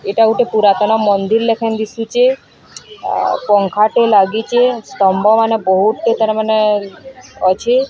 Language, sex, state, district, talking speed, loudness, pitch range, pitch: Odia, female, Odisha, Sambalpur, 120 wpm, -14 LUFS, 205-235 Hz, 220 Hz